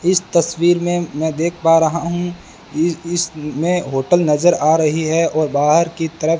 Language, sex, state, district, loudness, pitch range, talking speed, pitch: Hindi, male, Rajasthan, Bikaner, -17 LUFS, 155-175 Hz, 185 wpm, 165 Hz